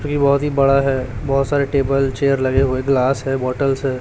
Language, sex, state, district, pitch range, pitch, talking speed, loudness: Hindi, male, Chhattisgarh, Raipur, 135-140 Hz, 135 Hz, 225 wpm, -17 LUFS